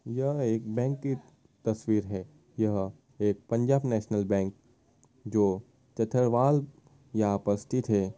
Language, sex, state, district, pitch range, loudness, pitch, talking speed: Hindi, male, Uttar Pradesh, Muzaffarnagar, 105-130 Hz, -29 LUFS, 115 Hz, 110 wpm